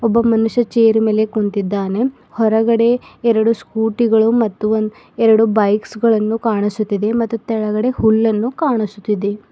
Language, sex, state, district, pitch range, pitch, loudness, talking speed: Kannada, female, Karnataka, Bidar, 215-230 Hz, 220 Hz, -16 LUFS, 120 wpm